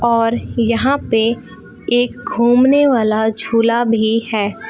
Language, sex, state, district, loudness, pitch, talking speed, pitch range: Hindi, female, Jharkhand, Palamu, -15 LUFS, 230 Hz, 115 wpm, 225-240 Hz